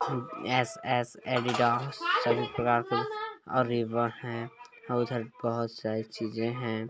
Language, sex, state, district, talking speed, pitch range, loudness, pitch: Hindi, male, Chhattisgarh, Balrampur, 35 wpm, 115-125 Hz, -30 LUFS, 120 Hz